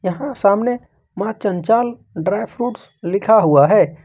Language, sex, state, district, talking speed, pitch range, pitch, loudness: Hindi, male, Jharkhand, Ranchi, 135 wpm, 180-235 Hz, 205 Hz, -17 LUFS